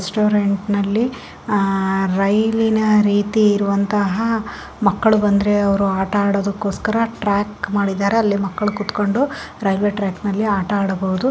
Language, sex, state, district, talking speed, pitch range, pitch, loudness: Kannada, female, Karnataka, Gulbarga, 95 wpm, 200-215 Hz, 205 Hz, -18 LUFS